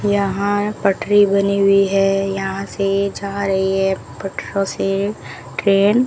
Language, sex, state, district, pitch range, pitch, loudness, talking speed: Hindi, female, Rajasthan, Bikaner, 195-200 Hz, 195 Hz, -18 LUFS, 140 wpm